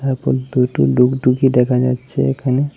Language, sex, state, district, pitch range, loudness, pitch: Bengali, male, Tripura, West Tripura, 125-135 Hz, -16 LUFS, 130 Hz